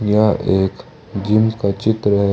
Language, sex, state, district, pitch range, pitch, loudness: Hindi, male, Jharkhand, Ranchi, 100-110 Hz, 105 Hz, -17 LUFS